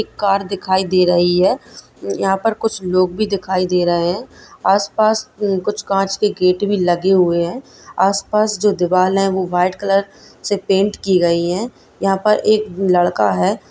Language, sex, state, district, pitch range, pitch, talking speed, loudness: Hindi, female, Bihar, Gopalganj, 180-205 Hz, 195 Hz, 180 wpm, -17 LUFS